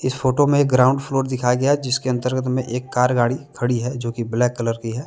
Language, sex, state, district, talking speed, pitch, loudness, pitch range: Hindi, male, Jharkhand, Deoghar, 260 wpm, 125 Hz, -20 LUFS, 120-130 Hz